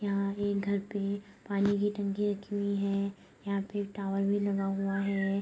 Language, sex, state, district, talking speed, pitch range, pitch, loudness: Hindi, female, Uttar Pradesh, Budaun, 220 wpm, 200-205 Hz, 200 Hz, -32 LUFS